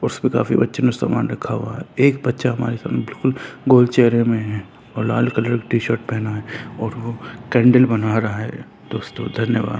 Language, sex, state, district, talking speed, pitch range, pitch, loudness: Hindi, male, Bihar, Purnia, 200 wpm, 110-125 Hz, 115 Hz, -19 LUFS